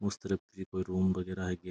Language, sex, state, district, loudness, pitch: Rajasthani, male, Rajasthan, Churu, -35 LUFS, 95 Hz